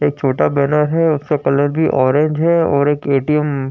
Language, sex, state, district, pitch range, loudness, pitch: Hindi, male, Uttar Pradesh, Jyotiba Phule Nagar, 140-150 Hz, -15 LUFS, 145 Hz